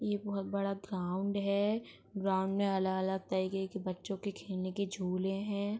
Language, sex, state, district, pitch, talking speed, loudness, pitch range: Hindi, female, Uttar Pradesh, Etah, 195 Hz, 165 wpm, -35 LUFS, 190-200 Hz